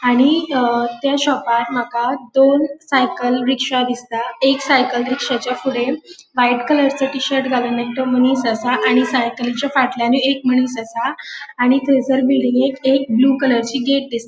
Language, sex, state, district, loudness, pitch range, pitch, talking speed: Konkani, female, Goa, North and South Goa, -17 LUFS, 245-270 Hz, 255 Hz, 150 wpm